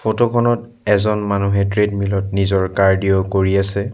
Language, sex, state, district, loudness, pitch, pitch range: Assamese, male, Assam, Sonitpur, -17 LUFS, 100 Hz, 95-105 Hz